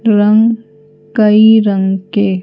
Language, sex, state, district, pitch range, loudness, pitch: Hindi, female, Madhya Pradesh, Bhopal, 190-220 Hz, -10 LUFS, 210 Hz